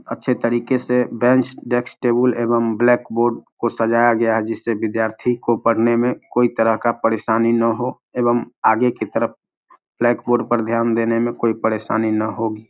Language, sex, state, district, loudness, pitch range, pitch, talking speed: Hindi, male, Bihar, Samastipur, -19 LUFS, 115-120 Hz, 115 Hz, 165 wpm